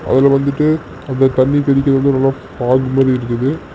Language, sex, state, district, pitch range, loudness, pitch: Tamil, male, Tamil Nadu, Namakkal, 130-140 Hz, -14 LUFS, 135 Hz